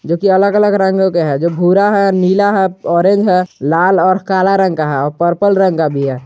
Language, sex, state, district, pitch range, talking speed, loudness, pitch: Hindi, male, Jharkhand, Garhwa, 170-195 Hz, 250 wpm, -12 LUFS, 185 Hz